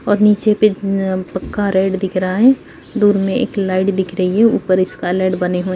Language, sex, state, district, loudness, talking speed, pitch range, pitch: Hindi, female, Uttar Pradesh, Jalaun, -16 LUFS, 210 wpm, 185-210 Hz, 195 Hz